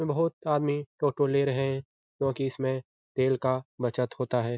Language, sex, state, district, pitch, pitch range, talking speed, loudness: Hindi, male, Bihar, Lakhisarai, 135 Hz, 130-145 Hz, 185 wpm, -29 LUFS